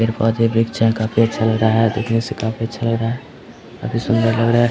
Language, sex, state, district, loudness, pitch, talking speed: Hindi, male, Bihar, Samastipur, -18 LUFS, 115 Hz, 165 wpm